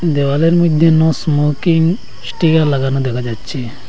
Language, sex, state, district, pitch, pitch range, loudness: Bengali, male, Assam, Hailakandi, 155 Hz, 135-165 Hz, -14 LUFS